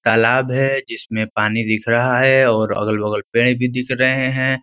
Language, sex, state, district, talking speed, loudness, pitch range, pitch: Hindi, male, Uttar Pradesh, Ghazipur, 195 wpm, -17 LUFS, 110-130 Hz, 120 Hz